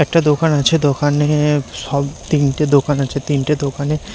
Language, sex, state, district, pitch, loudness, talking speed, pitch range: Bengali, male, Odisha, Nuapada, 145 Hz, -16 LUFS, 145 wpm, 140-150 Hz